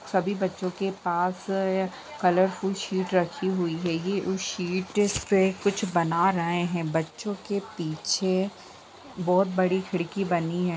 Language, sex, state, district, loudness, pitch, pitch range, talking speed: Hindi, female, Bihar, Lakhisarai, -27 LUFS, 185 Hz, 175-195 Hz, 150 wpm